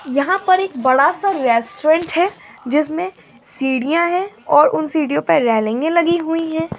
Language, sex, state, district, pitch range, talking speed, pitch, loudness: Angika, female, Bihar, Madhepura, 270-345 Hz, 150 wpm, 315 Hz, -17 LUFS